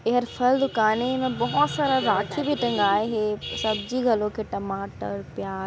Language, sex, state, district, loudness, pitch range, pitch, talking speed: Chhattisgarhi, female, Chhattisgarh, Raigarh, -24 LUFS, 205-255 Hz, 220 Hz, 170 wpm